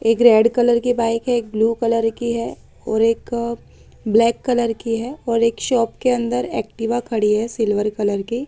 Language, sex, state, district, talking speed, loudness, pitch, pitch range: Hindi, female, Maharashtra, Mumbai Suburban, 200 wpm, -19 LUFS, 230 Hz, 225-240 Hz